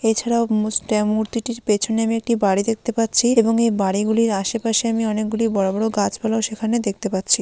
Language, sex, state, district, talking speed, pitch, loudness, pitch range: Bengali, female, West Bengal, Malda, 170 wpm, 220 Hz, -20 LUFS, 210-230 Hz